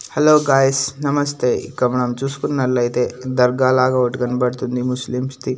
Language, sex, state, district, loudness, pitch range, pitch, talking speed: Telugu, male, Andhra Pradesh, Annamaya, -18 LUFS, 125-135 Hz, 130 Hz, 130 wpm